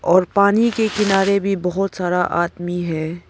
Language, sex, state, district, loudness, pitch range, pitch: Hindi, female, Arunachal Pradesh, Papum Pare, -18 LUFS, 175-200 Hz, 185 Hz